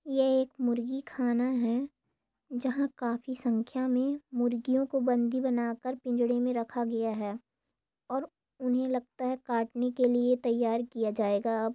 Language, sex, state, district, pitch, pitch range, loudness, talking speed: Hindi, female, Andhra Pradesh, Chittoor, 245 Hz, 235-260 Hz, -30 LUFS, 155 wpm